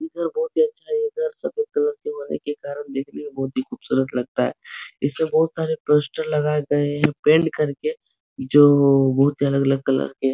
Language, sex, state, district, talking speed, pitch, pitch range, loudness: Hindi, male, Uttar Pradesh, Etah, 210 wpm, 150 Hz, 140-165 Hz, -21 LUFS